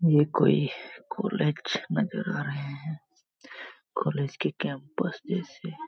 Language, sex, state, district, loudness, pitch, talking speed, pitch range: Hindi, male, Jharkhand, Jamtara, -29 LUFS, 150 Hz, 110 wpm, 140-165 Hz